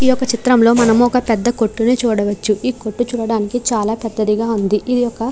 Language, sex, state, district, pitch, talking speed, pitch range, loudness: Telugu, female, Andhra Pradesh, Krishna, 230 Hz, 190 wpm, 220-245 Hz, -16 LUFS